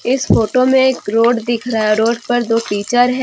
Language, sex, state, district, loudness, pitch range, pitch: Hindi, female, Jharkhand, Deoghar, -15 LUFS, 225-250 Hz, 235 Hz